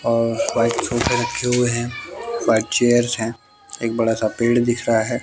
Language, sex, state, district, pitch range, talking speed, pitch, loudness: Hindi, male, Bihar, West Champaran, 115-120 Hz, 170 wpm, 120 Hz, -20 LUFS